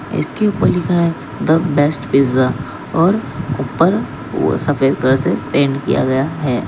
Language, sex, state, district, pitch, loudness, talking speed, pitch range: Hindi, male, Uttar Pradesh, Lalitpur, 140 Hz, -16 LUFS, 145 wpm, 135-165 Hz